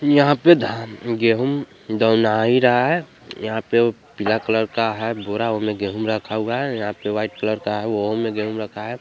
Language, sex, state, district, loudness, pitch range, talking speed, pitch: Hindi, male, Bihar, Vaishali, -20 LUFS, 105-115 Hz, 200 wpm, 110 Hz